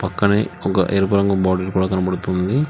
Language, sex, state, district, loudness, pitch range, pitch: Telugu, male, Telangana, Hyderabad, -19 LUFS, 95-100 Hz, 95 Hz